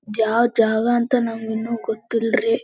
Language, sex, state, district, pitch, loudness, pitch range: Kannada, female, Karnataka, Belgaum, 230 Hz, -20 LUFS, 220-240 Hz